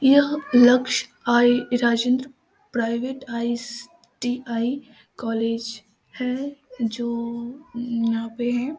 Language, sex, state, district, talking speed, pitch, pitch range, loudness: Maithili, female, Bihar, Samastipur, 90 wpm, 245 Hz, 235-260 Hz, -23 LUFS